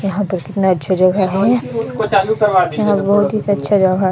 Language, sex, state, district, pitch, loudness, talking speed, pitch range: Hindi, female, Chhattisgarh, Sarguja, 195 Hz, -15 LUFS, 175 wpm, 190-210 Hz